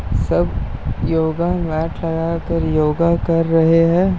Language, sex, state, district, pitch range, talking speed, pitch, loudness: Hindi, male, Uttar Pradesh, Etah, 160-170 Hz, 115 wpm, 165 Hz, -18 LUFS